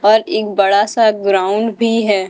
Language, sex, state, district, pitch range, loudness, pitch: Hindi, female, Delhi, New Delhi, 200-225 Hz, -14 LUFS, 210 Hz